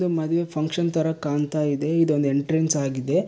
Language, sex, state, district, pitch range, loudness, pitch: Kannada, male, Karnataka, Bellary, 145-165 Hz, -23 LUFS, 160 Hz